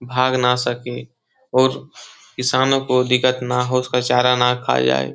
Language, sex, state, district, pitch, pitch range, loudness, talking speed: Hindi, male, Bihar, Jahanabad, 125 Hz, 125-130 Hz, -18 LUFS, 165 wpm